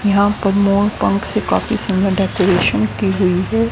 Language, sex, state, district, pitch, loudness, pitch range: Hindi, female, Haryana, Rohtak, 195 Hz, -16 LUFS, 185-200 Hz